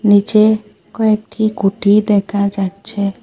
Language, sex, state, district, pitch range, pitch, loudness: Bengali, female, Assam, Hailakandi, 200-215 Hz, 210 Hz, -15 LUFS